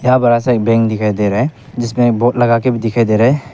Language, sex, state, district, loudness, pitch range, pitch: Hindi, male, Arunachal Pradesh, Papum Pare, -14 LUFS, 115-125 Hz, 120 Hz